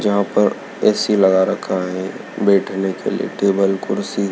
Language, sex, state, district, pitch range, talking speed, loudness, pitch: Hindi, male, Madhya Pradesh, Dhar, 95-100 Hz, 155 wpm, -18 LUFS, 95 Hz